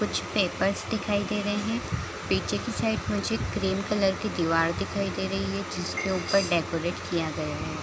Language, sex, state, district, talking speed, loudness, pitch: Hindi, female, Bihar, Kishanganj, 190 wpm, -28 LUFS, 165 Hz